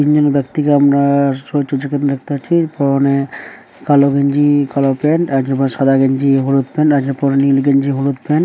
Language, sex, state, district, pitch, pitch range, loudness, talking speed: Bengali, male, West Bengal, Dakshin Dinajpur, 140 Hz, 135-145 Hz, -14 LUFS, 170 wpm